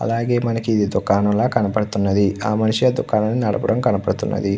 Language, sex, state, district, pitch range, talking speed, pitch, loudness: Telugu, male, Andhra Pradesh, Krishna, 100-115 Hz, 155 wpm, 105 Hz, -19 LUFS